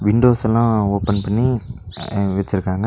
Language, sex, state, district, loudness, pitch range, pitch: Tamil, male, Tamil Nadu, Nilgiris, -18 LUFS, 100-115 Hz, 105 Hz